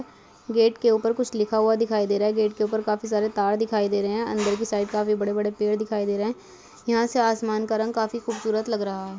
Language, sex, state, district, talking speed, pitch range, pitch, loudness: Hindi, female, Bihar, Bhagalpur, 260 wpm, 210-225 Hz, 215 Hz, -24 LUFS